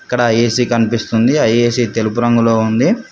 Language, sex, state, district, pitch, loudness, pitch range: Telugu, male, Telangana, Mahabubabad, 120 Hz, -14 LUFS, 115-120 Hz